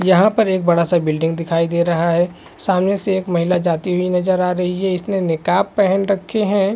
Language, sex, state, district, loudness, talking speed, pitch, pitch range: Hindi, male, Chhattisgarh, Bilaspur, -17 LUFS, 220 wpm, 180 Hz, 170-195 Hz